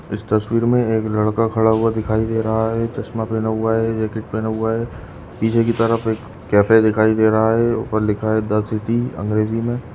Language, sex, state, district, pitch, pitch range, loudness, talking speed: Hindi, female, Goa, North and South Goa, 110 Hz, 110-115 Hz, -18 LUFS, 215 wpm